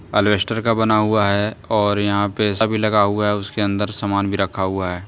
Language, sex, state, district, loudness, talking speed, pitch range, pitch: Hindi, male, Jharkhand, Deoghar, -19 LUFS, 225 wpm, 100-110 Hz, 105 Hz